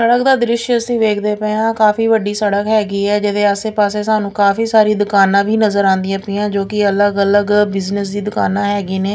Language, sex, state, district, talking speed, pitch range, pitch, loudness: Punjabi, female, Punjab, Pathankot, 195 wpm, 200-215 Hz, 205 Hz, -14 LUFS